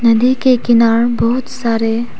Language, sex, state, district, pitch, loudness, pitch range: Hindi, female, Arunachal Pradesh, Papum Pare, 235 Hz, -13 LUFS, 230-250 Hz